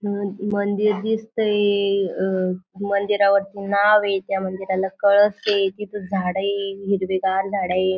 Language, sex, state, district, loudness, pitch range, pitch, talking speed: Marathi, female, Maharashtra, Aurangabad, -21 LUFS, 190-205 Hz, 200 Hz, 120 wpm